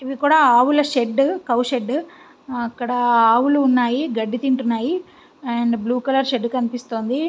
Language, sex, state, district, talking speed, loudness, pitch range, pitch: Telugu, female, Andhra Pradesh, Visakhapatnam, 115 wpm, -19 LUFS, 240-285 Hz, 250 Hz